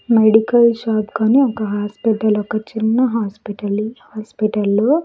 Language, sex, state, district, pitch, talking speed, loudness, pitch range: Telugu, female, Andhra Pradesh, Sri Satya Sai, 220 Hz, 140 wpm, -17 LUFS, 210-230 Hz